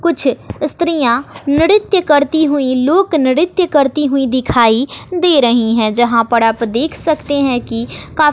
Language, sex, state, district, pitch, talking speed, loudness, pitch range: Hindi, female, Bihar, West Champaran, 280 Hz, 150 wpm, -13 LUFS, 240-315 Hz